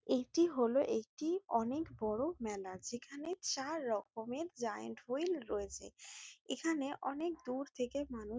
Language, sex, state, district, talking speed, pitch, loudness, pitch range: Bengali, female, West Bengal, Jalpaiguri, 120 wpm, 260 Hz, -39 LUFS, 225-320 Hz